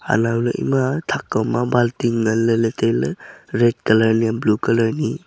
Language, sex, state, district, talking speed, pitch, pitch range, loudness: Wancho, male, Arunachal Pradesh, Longding, 205 wpm, 115 Hz, 115-120 Hz, -19 LUFS